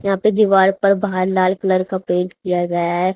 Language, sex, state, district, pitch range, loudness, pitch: Hindi, female, Haryana, Charkhi Dadri, 180-195 Hz, -17 LUFS, 185 Hz